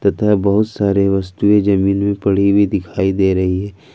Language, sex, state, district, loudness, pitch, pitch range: Hindi, male, Jharkhand, Ranchi, -15 LUFS, 100 Hz, 95-100 Hz